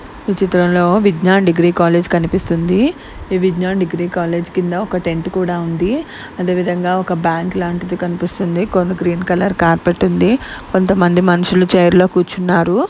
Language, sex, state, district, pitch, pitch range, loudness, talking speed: Telugu, female, Telangana, Karimnagar, 180 Hz, 175-185 Hz, -15 LUFS, 150 wpm